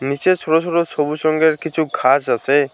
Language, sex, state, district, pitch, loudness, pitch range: Bengali, male, West Bengal, Alipurduar, 155 Hz, -17 LUFS, 145-165 Hz